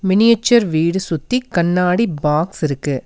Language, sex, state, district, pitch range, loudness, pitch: Tamil, female, Tamil Nadu, Nilgiris, 155-225 Hz, -16 LUFS, 180 Hz